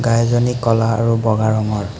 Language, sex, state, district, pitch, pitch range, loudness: Assamese, male, Assam, Hailakandi, 115 Hz, 110-115 Hz, -16 LUFS